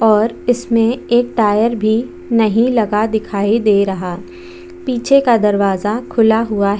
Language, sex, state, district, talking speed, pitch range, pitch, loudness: Hindi, female, Chhattisgarh, Bastar, 140 wpm, 210-240 Hz, 225 Hz, -15 LUFS